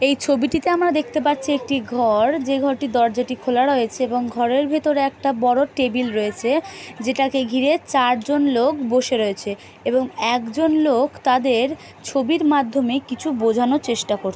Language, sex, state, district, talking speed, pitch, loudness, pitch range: Bengali, female, West Bengal, Jhargram, 150 wpm, 265 Hz, -20 LUFS, 245-285 Hz